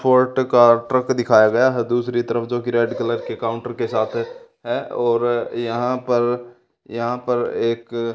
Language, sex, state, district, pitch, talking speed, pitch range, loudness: Hindi, male, Haryana, Charkhi Dadri, 120 Hz, 170 wpm, 115-125 Hz, -19 LUFS